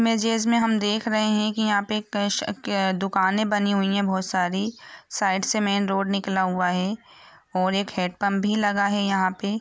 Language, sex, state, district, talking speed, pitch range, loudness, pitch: Hindi, female, Bihar, Samastipur, 200 wpm, 195-215 Hz, -23 LUFS, 200 Hz